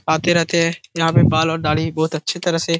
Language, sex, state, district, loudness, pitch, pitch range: Hindi, male, Bihar, Jahanabad, -18 LUFS, 165 Hz, 160-170 Hz